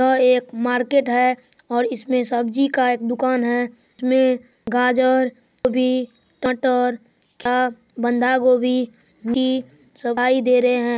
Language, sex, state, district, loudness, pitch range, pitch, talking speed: Hindi, female, Bihar, Supaul, -20 LUFS, 245-255 Hz, 250 Hz, 130 wpm